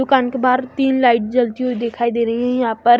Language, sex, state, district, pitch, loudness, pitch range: Hindi, female, Chhattisgarh, Raipur, 245 Hz, -17 LUFS, 235-255 Hz